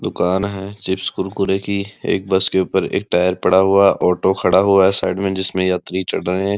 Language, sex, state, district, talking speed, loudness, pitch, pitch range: Hindi, male, Uttar Pradesh, Muzaffarnagar, 200 wpm, -17 LUFS, 95 Hz, 95-100 Hz